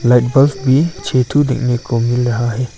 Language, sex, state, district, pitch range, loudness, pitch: Hindi, male, Arunachal Pradesh, Longding, 120-135 Hz, -15 LUFS, 125 Hz